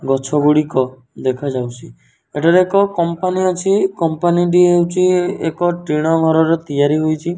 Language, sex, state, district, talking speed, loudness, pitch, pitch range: Odia, male, Odisha, Nuapada, 120 wpm, -16 LUFS, 165 Hz, 145-175 Hz